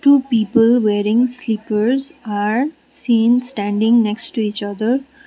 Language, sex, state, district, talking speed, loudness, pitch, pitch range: English, female, Sikkim, Gangtok, 125 wpm, -17 LUFS, 230 Hz, 215-255 Hz